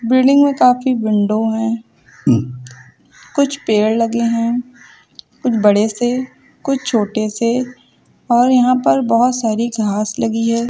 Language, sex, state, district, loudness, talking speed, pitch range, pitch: Hindi, female, Uttar Pradesh, Lucknow, -16 LUFS, 130 wpm, 215-250 Hz, 230 Hz